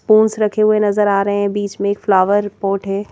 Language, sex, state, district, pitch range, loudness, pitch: Hindi, female, Madhya Pradesh, Bhopal, 200-210 Hz, -16 LUFS, 205 Hz